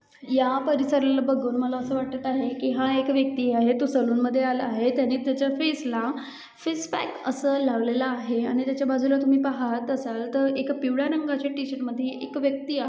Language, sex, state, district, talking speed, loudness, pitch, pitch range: Marathi, female, Maharashtra, Aurangabad, 185 wpm, -25 LUFS, 265 Hz, 255-275 Hz